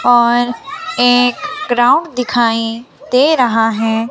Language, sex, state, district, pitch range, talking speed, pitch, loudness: Hindi, male, Himachal Pradesh, Shimla, 230-255 Hz, 100 wpm, 245 Hz, -13 LUFS